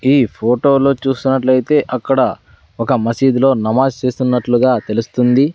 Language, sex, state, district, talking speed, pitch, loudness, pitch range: Telugu, male, Andhra Pradesh, Sri Satya Sai, 120 wpm, 130 Hz, -15 LUFS, 120-135 Hz